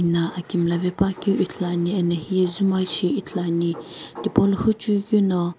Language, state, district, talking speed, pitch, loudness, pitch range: Sumi, Nagaland, Kohima, 160 wpm, 180 Hz, -22 LUFS, 175-195 Hz